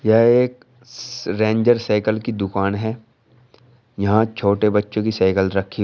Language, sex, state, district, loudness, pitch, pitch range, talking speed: Hindi, male, Uttar Pradesh, Shamli, -19 LUFS, 110 Hz, 105-120 Hz, 135 wpm